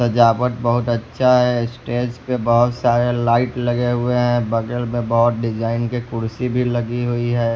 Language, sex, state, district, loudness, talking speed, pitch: Hindi, male, Bihar, West Champaran, -19 LUFS, 175 wpm, 120 Hz